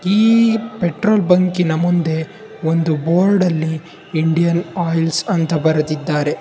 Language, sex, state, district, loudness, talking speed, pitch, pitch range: Kannada, male, Karnataka, Bangalore, -16 LUFS, 95 wpm, 170 Hz, 160-185 Hz